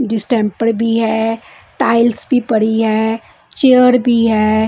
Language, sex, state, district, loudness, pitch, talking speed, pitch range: Hindi, female, Bihar, West Champaran, -14 LUFS, 225 Hz, 140 wpm, 220-240 Hz